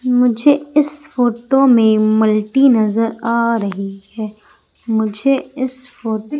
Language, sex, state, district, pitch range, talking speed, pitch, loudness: Hindi, female, Madhya Pradesh, Umaria, 220-265 Hz, 120 wpm, 235 Hz, -15 LUFS